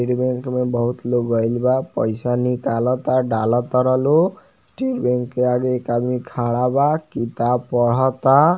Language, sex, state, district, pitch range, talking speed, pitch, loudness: Bhojpuri, male, Bihar, Muzaffarpur, 120-130 Hz, 145 wpm, 125 Hz, -19 LUFS